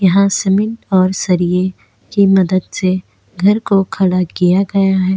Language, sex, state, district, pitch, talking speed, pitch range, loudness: Hindi, female, Maharashtra, Aurangabad, 190 Hz, 150 wpm, 185-195 Hz, -14 LUFS